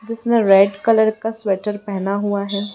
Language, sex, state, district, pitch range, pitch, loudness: Hindi, female, Madhya Pradesh, Dhar, 200-225 Hz, 205 Hz, -18 LUFS